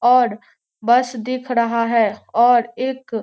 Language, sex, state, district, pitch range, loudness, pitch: Hindi, female, Bihar, Gopalganj, 230-250 Hz, -18 LUFS, 235 Hz